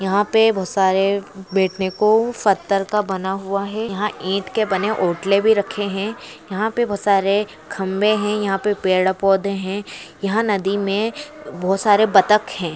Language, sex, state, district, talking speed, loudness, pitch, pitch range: Hindi, female, Andhra Pradesh, Chittoor, 190 wpm, -19 LUFS, 200 Hz, 190-210 Hz